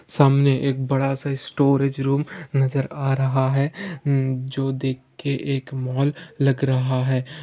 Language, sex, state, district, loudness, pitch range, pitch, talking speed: Hindi, male, Bihar, Jamui, -22 LUFS, 130-140 Hz, 135 Hz, 160 wpm